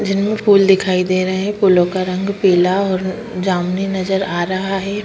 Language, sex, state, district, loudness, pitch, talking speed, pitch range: Hindi, female, Chhattisgarh, Sukma, -16 LUFS, 190 Hz, 200 wpm, 185-195 Hz